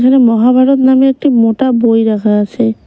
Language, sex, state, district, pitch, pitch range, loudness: Bengali, female, West Bengal, Cooch Behar, 245 Hz, 225-260 Hz, -10 LUFS